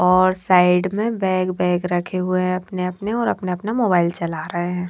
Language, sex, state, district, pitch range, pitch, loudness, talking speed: Hindi, female, Haryana, Charkhi Dadri, 180-185 Hz, 185 Hz, -20 LUFS, 210 wpm